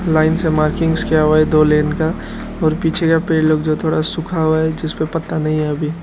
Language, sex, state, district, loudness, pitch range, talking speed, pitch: Hindi, male, Arunachal Pradesh, Lower Dibang Valley, -16 LUFS, 155-165 Hz, 250 wpm, 160 Hz